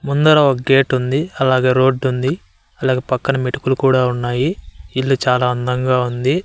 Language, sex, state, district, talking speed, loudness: Telugu, male, Andhra Pradesh, Annamaya, 150 wpm, -16 LUFS